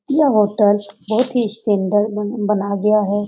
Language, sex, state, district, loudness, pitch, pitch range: Hindi, female, Bihar, Saran, -17 LUFS, 210 Hz, 205-220 Hz